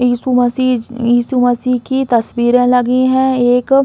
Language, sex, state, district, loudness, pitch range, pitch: Bundeli, female, Uttar Pradesh, Hamirpur, -13 LUFS, 245-255 Hz, 250 Hz